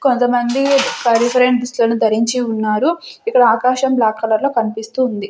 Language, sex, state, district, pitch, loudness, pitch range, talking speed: Telugu, female, Andhra Pradesh, Sri Satya Sai, 240 Hz, -15 LUFS, 225-255 Hz, 125 wpm